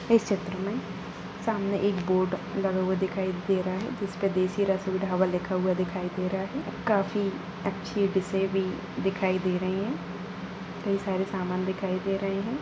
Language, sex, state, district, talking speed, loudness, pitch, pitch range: Hindi, female, Bihar, Jahanabad, 175 wpm, -29 LUFS, 190 Hz, 185-195 Hz